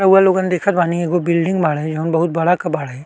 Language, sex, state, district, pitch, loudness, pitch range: Bhojpuri, male, Uttar Pradesh, Deoria, 170 Hz, -17 LUFS, 165-180 Hz